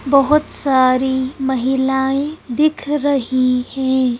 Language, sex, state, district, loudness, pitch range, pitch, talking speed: Hindi, female, Madhya Pradesh, Bhopal, -17 LUFS, 260-280 Hz, 265 Hz, 85 wpm